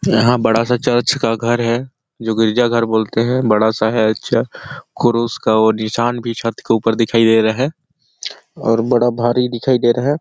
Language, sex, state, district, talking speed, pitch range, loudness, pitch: Hindi, male, Chhattisgarh, Sarguja, 200 wpm, 115-120 Hz, -16 LUFS, 115 Hz